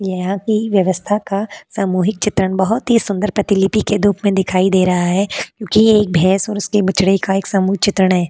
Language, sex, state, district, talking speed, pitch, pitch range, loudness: Hindi, female, Uttar Pradesh, Jalaun, 200 wpm, 195 Hz, 190-210 Hz, -16 LUFS